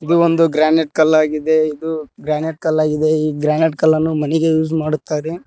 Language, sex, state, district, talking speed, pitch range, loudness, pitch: Kannada, male, Karnataka, Koppal, 145 wpm, 155-160 Hz, -16 LUFS, 155 Hz